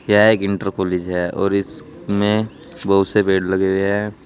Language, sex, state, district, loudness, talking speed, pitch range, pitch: Hindi, male, Uttar Pradesh, Saharanpur, -18 LUFS, 195 wpm, 95-105 Hz, 100 Hz